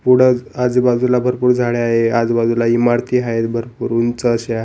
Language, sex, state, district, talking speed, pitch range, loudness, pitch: Marathi, male, Maharashtra, Pune, 155 wpm, 115-125 Hz, -16 LUFS, 120 Hz